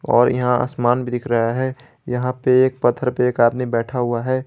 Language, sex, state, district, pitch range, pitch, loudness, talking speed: Hindi, male, Jharkhand, Garhwa, 120-130 Hz, 125 Hz, -19 LUFS, 230 wpm